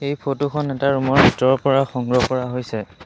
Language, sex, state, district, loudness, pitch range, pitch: Assamese, male, Assam, Sonitpur, -19 LUFS, 125-140 Hz, 135 Hz